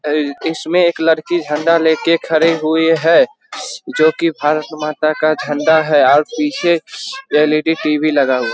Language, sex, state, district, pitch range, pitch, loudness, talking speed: Hindi, male, Bihar, Jamui, 150-165 Hz, 155 Hz, -14 LUFS, 155 wpm